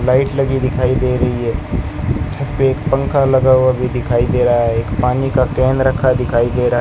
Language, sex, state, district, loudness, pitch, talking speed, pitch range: Hindi, male, Rajasthan, Bikaner, -15 LUFS, 125 Hz, 230 wpm, 120-130 Hz